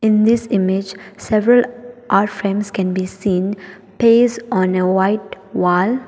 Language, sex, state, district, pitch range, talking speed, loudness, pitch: English, female, Arunachal Pradesh, Papum Pare, 190-230 Hz, 140 wpm, -17 LUFS, 200 Hz